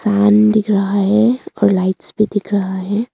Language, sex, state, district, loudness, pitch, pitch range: Hindi, female, Arunachal Pradesh, Longding, -15 LUFS, 205 Hz, 200-215 Hz